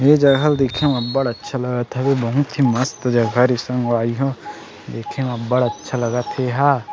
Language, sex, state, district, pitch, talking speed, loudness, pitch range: Chhattisgarhi, male, Chhattisgarh, Sukma, 125 Hz, 200 wpm, -19 LUFS, 120-135 Hz